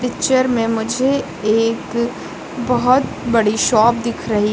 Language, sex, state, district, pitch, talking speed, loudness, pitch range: Hindi, female, Uttar Pradesh, Lucknow, 235 Hz, 130 wpm, -17 LUFS, 225-250 Hz